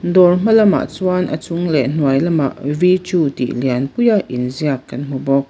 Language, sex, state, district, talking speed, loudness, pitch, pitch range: Mizo, female, Mizoram, Aizawl, 205 wpm, -16 LUFS, 150 Hz, 135-180 Hz